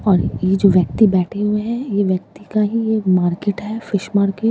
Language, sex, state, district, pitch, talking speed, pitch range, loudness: Hindi, female, Bihar, Katihar, 205 Hz, 215 wpm, 190-215 Hz, -18 LUFS